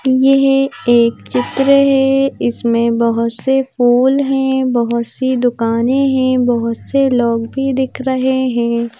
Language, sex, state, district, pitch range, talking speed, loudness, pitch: Hindi, female, Madhya Pradesh, Bhopal, 235-270 Hz, 135 wpm, -14 LUFS, 255 Hz